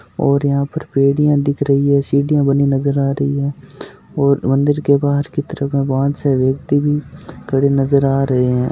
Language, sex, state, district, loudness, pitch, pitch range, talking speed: Marwari, male, Rajasthan, Nagaur, -16 LUFS, 140 Hz, 135-145 Hz, 190 wpm